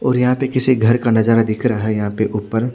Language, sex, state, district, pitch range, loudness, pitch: Hindi, male, Odisha, Khordha, 110-125 Hz, -16 LUFS, 115 Hz